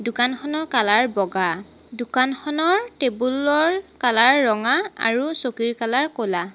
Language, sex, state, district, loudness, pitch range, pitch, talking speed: Assamese, female, Assam, Sonitpur, -19 LUFS, 230-300 Hz, 250 Hz, 110 wpm